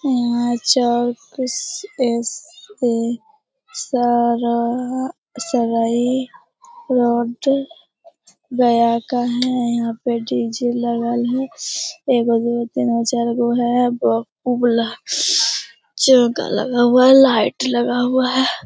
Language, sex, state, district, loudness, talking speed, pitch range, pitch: Hindi, female, Bihar, Lakhisarai, -18 LUFS, 95 wpm, 235-260 Hz, 245 Hz